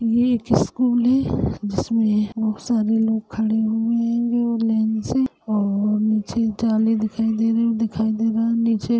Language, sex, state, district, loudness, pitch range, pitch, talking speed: Hindi, male, Uttar Pradesh, Budaun, -20 LUFS, 220-230 Hz, 225 Hz, 175 wpm